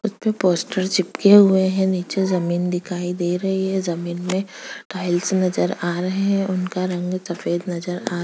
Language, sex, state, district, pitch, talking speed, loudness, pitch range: Hindi, female, Chhattisgarh, Kabirdham, 185 Hz, 175 wpm, -20 LUFS, 175-190 Hz